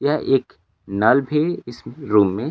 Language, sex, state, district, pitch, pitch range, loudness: Hindi, male, Bihar, Kaimur, 120 Hz, 100-145 Hz, -19 LUFS